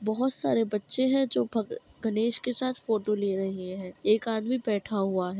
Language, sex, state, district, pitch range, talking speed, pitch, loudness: Hindi, female, Bihar, Madhepura, 200-250 Hz, 200 wpm, 220 Hz, -28 LUFS